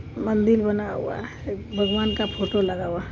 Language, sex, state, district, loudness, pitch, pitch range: Maithili, female, Bihar, Supaul, -24 LUFS, 205 Hz, 195-215 Hz